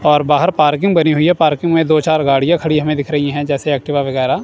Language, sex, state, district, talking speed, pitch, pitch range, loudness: Hindi, male, Punjab, Kapurthala, 255 wpm, 150 Hz, 145-160 Hz, -14 LUFS